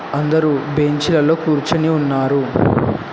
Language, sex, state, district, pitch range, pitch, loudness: Telugu, male, Telangana, Hyderabad, 145-160 Hz, 150 Hz, -16 LUFS